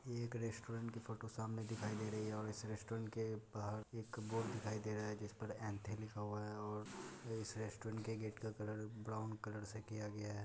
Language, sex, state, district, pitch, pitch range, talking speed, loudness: Hindi, male, Bihar, Muzaffarpur, 110 Hz, 105-110 Hz, 230 wpm, -47 LUFS